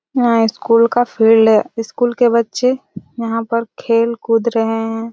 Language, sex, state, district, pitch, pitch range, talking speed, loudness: Hindi, female, Chhattisgarh, Raigarh, 230 Hz, 225-235 Hz, 150 wpm, -15 LUFS